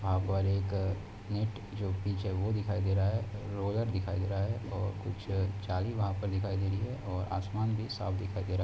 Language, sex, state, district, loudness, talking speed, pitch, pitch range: Hindi, male, Chhattisgarh, Sukma, -34 LUFS, 230 wpm, 100 Hz, 95-105 Hz